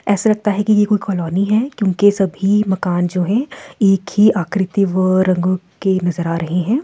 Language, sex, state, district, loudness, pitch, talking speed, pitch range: Hindi, female, Himachal Pradesh, Shimla, -16 LUFS, 195 Hz, 200 wpm, 185-210 Hz